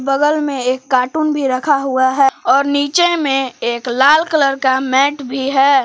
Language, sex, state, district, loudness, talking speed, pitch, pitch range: Hindi, female, Jharkhand, Palamu, -14 LUFS, 185 wpm, 270 Hz, 260-285 Hz